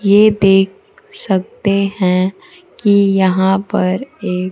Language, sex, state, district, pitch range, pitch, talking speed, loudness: Hindi, female, Bihar, Kaimur, 190-215 Hz, 195 Hz, 105 wpm, -14 LUFS